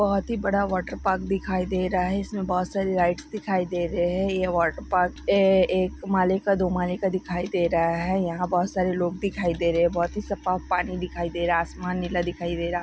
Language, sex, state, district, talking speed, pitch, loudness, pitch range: Hindi, male, Jharkhand, Jamtara, 235 wpm, 180 Hz, -25 LUFS, 175-190 Hz